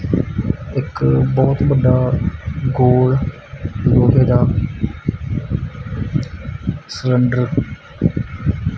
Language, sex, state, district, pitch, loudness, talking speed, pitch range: Punjabi, male, Punjab, Kapurthala, 125 Hz, -17 LUFS, 50 wpm, 115-130 Hz